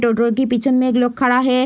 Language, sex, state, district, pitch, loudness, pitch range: Hindi, female, Bihar, Madhepura, 250 Hz, -16 LUFS, 240-255 Hz